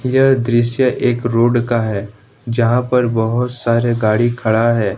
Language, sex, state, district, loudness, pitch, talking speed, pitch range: Hindi, male, Jharkhand, Ranchi, -15 LUFS, 120 Hz, 155 wpm, 115-125 Hz